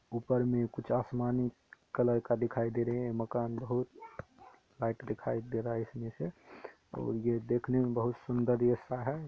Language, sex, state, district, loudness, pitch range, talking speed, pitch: Hindi, male, Bihar, Saharsa, -34 LUFS, 115-125 Hz, 180 wpm, 120 Hz